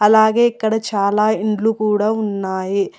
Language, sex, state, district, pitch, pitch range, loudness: Telugu, female, Telangana, Hyderabad, 215 Hz, 200-220 Hz, -17 LUFS